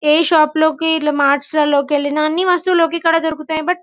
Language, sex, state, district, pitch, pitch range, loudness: Telugu, female, Telangana, Karimnagar, 315 Hz, 300-330 Hz, -15 LUFS